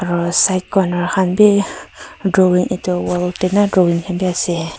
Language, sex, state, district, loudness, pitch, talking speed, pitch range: Nagamese, female, Nagaland, Kohima, -16 LUFS, 180 Hz, 175 wpm, 175-190 Hz